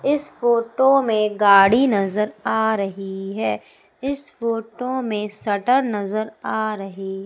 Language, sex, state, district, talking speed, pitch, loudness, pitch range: Hindi, female, Madhya Pradesh, Umaria, 125 wpm, 220 Hz, -20 LUFS, 200-250 Hz